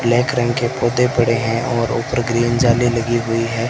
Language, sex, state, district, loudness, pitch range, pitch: Hindi, male, Rajasthan, Bikaner, -17 LUFS, 115-120 Hz, 120 Hz